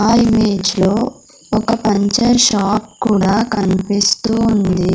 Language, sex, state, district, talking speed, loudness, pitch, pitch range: Telugu, female, Andhra Pradesh, Sri Satya Sai, 110 wpm, -14 LUFS, 210 Hz, 200-225 Hz